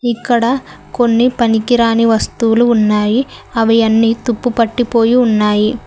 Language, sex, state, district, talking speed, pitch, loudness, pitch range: Telugu, female, Telangana, Mahabubabad, 100 wpm, 230 Hz, -13 LUFS, 225-240 Hz